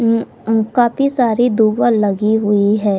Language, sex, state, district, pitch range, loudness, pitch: Hindi, female, Uttar Pradesh, Muzaffarnagar, 210-235 Hz, -15 LUFS, 225 Hz